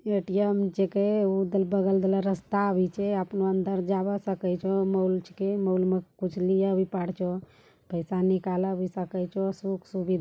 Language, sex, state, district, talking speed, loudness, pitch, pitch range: Angika, female, Bihar, Bhagalpur, 160 wpm, -27 LUFS, 190 Hz, 185-195 Hz